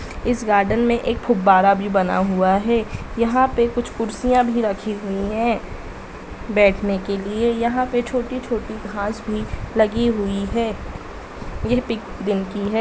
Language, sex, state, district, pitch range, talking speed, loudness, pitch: Hindi, female, Bihar, Sitamarhi, 200-235 Hz, 160 wpm, -20 LUFS, 220 Hz